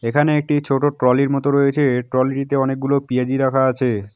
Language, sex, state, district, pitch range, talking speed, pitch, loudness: Bengali, male, West Bengal, Alipurduar, 125-140 Hz, 190 wpm, 135 Hz, -18 LUFS